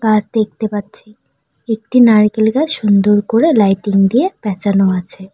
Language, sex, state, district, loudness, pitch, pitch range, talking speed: Bengali, female, West Bengal, Cooch Behar, -13 LUFS, 210 Hz, 195-225 Hz, 135 wpm